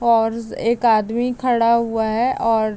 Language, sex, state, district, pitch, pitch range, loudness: Hindi, female, Uttar Pradesh, Deoria, 230 Hz, 225-240 Hz, -18 LUFS